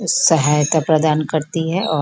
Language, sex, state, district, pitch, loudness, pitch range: Hindi, female, Bihar, Gopalganj, 155 Hz, -16 LUFS, 150-165 Hz